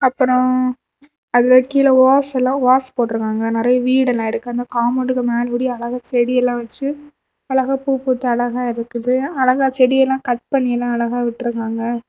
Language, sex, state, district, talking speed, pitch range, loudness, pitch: Tamil, female, Tamil Nadu, Kanyakumari, 150 wpm, 240-265 Hz, -17 LUFS, 250 Hz